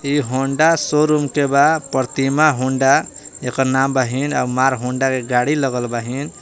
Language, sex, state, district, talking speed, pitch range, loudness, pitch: Bhojpuri, male, Jharkhand, Palamu, 120 wpm, 130-145 Hz, -17 LUFS, 135 Hz